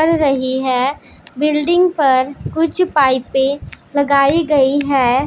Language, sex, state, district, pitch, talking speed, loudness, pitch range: Hindi, female, Punjab, Pathankot, 280 Hz, 115 wpm, -15 LUFS, 265-300 Hz